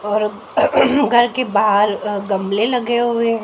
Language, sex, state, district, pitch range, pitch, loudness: Hindi, female, Haryana, Jhajjar, 205-240 Hz, 215 Hz, -17 LUFS